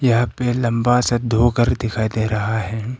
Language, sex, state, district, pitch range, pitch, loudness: Hindi, male, Arunachal Pradesh, Papum Pare, 110-120 Hz, 120 Hz, -19 LUFS